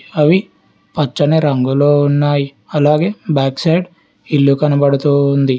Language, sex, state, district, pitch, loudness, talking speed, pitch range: Telugu, male, Telangana, Hyderabad, 145 Hz, -14 LUFS, 105 wpm, 140-155 Hz